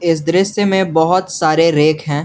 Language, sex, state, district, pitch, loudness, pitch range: Hindi, male, Jharkhand, Garhwa, 165 Hz, -14 LUFS, 155-185 Hz